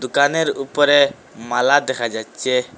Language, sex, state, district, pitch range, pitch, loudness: Bengali, male, Assam, Hailakandi, 125-145 Hz, 130 Hz, -18 LUFS